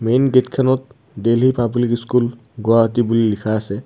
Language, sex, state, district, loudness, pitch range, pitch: Assamese, male, Assam, Kamrup Metropolitan, -17 LUFS, 115-130 Hz, 120 Hz